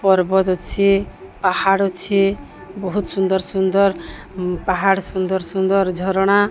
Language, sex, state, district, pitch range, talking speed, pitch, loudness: Odia, female, Odisha, Sambalpur, 185-195 Hz, 90 wpm, 190 Hz, -18 LUFS